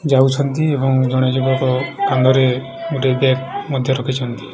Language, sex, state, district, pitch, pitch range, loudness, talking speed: Odia, male, Odisha, Khordha, 130 Hz, 130-135 Hz, -17 LUFS, 105 wpm